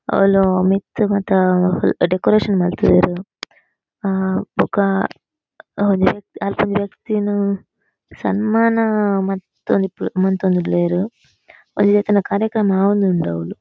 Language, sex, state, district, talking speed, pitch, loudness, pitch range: Tulu, female, Karnataka, Dakshina Kannada, 90 wpm, 195 Hz, -18 LUFS, 185-205 Hz